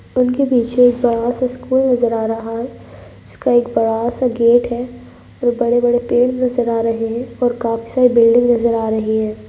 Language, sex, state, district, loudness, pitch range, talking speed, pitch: Hindi, female, Uttar Pradesh, Deoria, -16 LUFS, 230-250 Hz, 200 wpm, 240 Hz